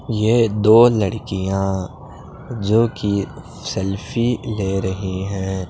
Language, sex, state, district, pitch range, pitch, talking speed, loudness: Hindi, male, Punjab, Pathankot, 95-115 Hz, 100 Hz, 95 wpm, -19 LUFS